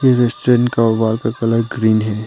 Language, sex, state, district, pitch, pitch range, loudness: Hindi, male, Arunachal Pradesh, Papum Pare, 115 Hz, 110-120 Hz, -16 LUFS